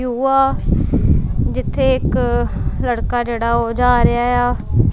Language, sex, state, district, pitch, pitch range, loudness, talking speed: Punjabi, female, Punjab, Kapurthala, 245 Hz, 240-250 Hz, -17 LUFS, 95 wpm